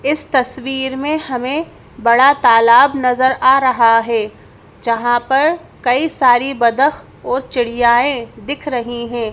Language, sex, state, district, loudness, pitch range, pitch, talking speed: Hindi, female, Madhya Pradesh, Bhopal, -14 LUFS, 235-275 Hz, 255 Hz, 130 wpm